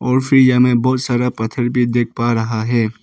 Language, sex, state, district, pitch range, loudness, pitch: Hindi, male, Arunachal Pradesh, Papum Pare, 115-125 Hz, -16 LUFS, 120 Hz